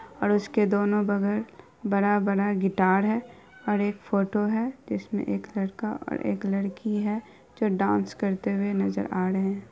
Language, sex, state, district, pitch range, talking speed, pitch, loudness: Hindi, female, Bihar, Araria, 190-210 Hz, 160 wpm, 200 Hz, -27 LUFS